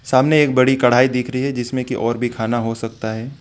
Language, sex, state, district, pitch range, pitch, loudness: Hindi, male, West Bengal, Alipurduar, 115-130 Hz, 125 Hz, -18 LUFS